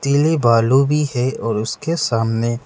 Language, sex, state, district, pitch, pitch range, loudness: Hindi, male, Arunachal Pradesh, Lower Dibang Valley, 125 Hz, 115-145 Hz, -17 LUFS